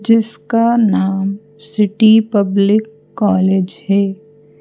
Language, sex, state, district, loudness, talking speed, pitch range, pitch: Hindi, female, Madhya Pradesh, Bhopal, -14 LUFS, 80 wpm, 190-220 Hz, 200 Hz